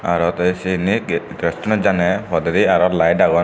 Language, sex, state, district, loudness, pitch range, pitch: Chakma, male, Tripura, Dhalai, -17 LUFS, 85-95 Hz, 90 Hz